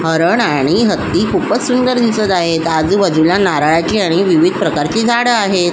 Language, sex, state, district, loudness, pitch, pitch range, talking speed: Marathi, female, Maharashtra, Solapur, -13 LUFS, 190 Hz, 165-235 Hz, 145 wpm